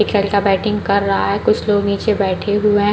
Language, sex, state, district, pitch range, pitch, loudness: Hindi, female, Chhattisgarh, Balrampur, 200-210 Hz, 205 Hz, -16 LUFS